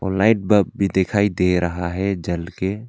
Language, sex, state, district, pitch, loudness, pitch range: Hindi, male, Arunachal Pradesh, Longding, 95 Hz, -20 LUFS, 90-100 Hz